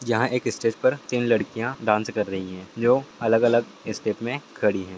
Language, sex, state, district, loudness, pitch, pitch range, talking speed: Hindi, male, Uttar Pradesh, Etah, -24 LUFS, 115 Hz, 105-125 Hz, 215 wpm